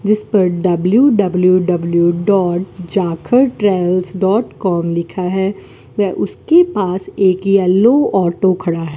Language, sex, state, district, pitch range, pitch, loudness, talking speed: Hindi, female, Rajasthan, Bikaner, 180-200 Hz, 185 Hz, -14 LUFS, 155 wpm